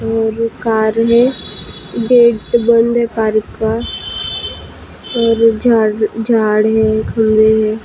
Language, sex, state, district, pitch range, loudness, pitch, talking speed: Hindi, female, Maharashtra, Gondia, 215-230 Hz, -13 LUFS, 220 Hz, 105 wpm